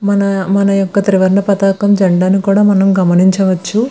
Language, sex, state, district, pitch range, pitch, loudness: Telugu, female, Andhra Pradesh, Visakhapatnam, 190-200 Hz, 195 Hz, -11 LUFS